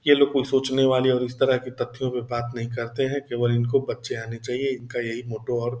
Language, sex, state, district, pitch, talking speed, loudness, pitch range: Hindi, male, Bihar, Purnia, 125 Hz, 260 wpm, -24 LUFS, 120-135 Hz